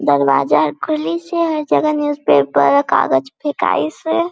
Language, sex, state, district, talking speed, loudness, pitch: Hindi, female, Chhattisgarh, Balrampur, 140 wpm, -16 LUFS, 290 Hz